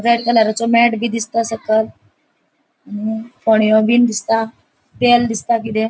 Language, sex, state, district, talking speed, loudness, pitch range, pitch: Konkani, female, Goa, North and South Goa, 130 wpm, -16 LUFS, 220-235 Hz, 230 Hz